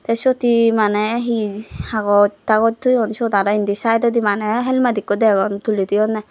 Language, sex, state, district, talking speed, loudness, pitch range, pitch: Chakma, female, Tripura, Dhalai, 170 wpm, -17 LUFS, 205-230 Hz, 220 Hz